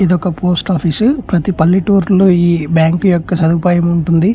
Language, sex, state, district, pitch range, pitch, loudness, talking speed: Telugu, male, Andhra Pradesh, Chittoor, 170-190 Hz, 180 Hz, -12 LUFS, 165 wpm